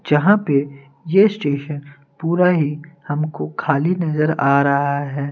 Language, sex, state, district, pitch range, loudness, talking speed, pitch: Hindi, male, Bihar, Kaimur, 140-165 Hz, -18 LUFS, 135 wpm, 145 Hz